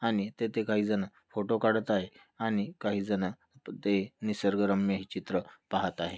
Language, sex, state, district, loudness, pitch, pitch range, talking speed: Marathi, male, Maharashtra, Dhule, -31 LUFS, 100 Hz, 100-110 Hz, 155 wpm